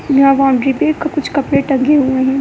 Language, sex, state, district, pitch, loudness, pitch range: Hindi, female, Bihar, Begusarai, 275 Hz, -13 LUFS, 270-295 Hz